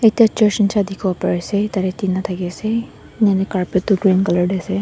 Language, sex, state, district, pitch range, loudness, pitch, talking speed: Nagamese, female, Nagaland, Dimapur, 185-210 Hz, -18 LUFS, 195 Hz, 210 wpm